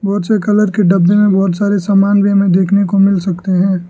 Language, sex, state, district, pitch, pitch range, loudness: Hindi, male, Arunachal Pradesh, Lower Dibang Valley, 195 Hz, 190-200 Hz, -12 LUFS